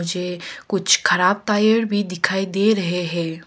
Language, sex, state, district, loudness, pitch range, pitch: Hindi, female, Arunachal Pradesh, Papum Pare, -19 LUFS, 175-205 Hz, 185 Hz